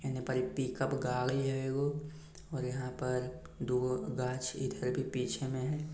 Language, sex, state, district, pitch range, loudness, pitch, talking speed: Maithili, male, Bihar, Lakhisarai, 125-135 Hz, -36 LUFS, 130 Hz, 170 wpm